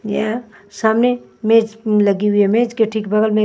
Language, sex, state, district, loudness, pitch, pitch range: Hindi, female, Maharashtra, Mumbai Suburban, -17 LUFS, 220 Hz, 210-225 Hz